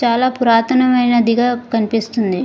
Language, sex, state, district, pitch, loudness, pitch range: Telugu, female, Andhra Pradesh, Guntur, 235 Hz, -15 LUFS, 230-245 Hz